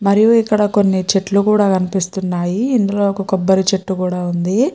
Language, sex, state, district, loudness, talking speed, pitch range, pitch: Telugu, female, Andhra Pradesh, Chittoor, -16 LUFS, 150 wpm, 190-205 Hz, 195 Hz